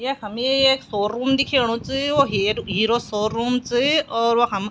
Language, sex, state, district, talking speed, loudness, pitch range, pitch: Garhwali, female, Uttarakhand, Tehri Garhwal, 165 wpm, -20 LUFS, 215-270 Hz, 240 Hz